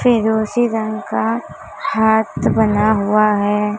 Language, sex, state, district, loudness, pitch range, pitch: Hindi, female, Maharashtra, Mumbai Suburban, -16 LUFS, 210-225 Hz, 220 Hz